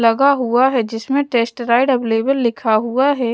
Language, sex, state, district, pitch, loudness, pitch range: Hindi, female, Punjab, Pathankot, 245 Hz, -16 LUFS, 230-270 Hz